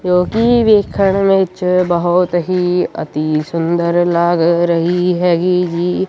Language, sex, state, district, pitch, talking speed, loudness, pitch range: Punjabi, male, Punjab, Kapurthala, 180 Hz, 110 wpm, -14 LUFS, 170-180 Hz